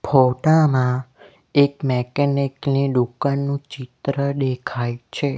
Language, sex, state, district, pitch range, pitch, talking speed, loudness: Gujarati, male, Gujarat, Valsad, 125-140 Hz, 135 Hz, 100 wpm, -20 LUFS